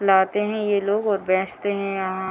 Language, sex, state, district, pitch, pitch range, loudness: Hindi, female, Bihar, Muzaffarpur, 200 Hz, 190-205 Hz, -22 LUFS